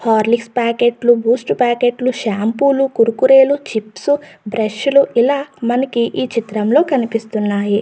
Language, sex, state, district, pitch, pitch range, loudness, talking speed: Telugu, female, Andhra Pradesh, Guntur, 240 Hz, 225-270 Hz, -15 LUFS, 145 wpm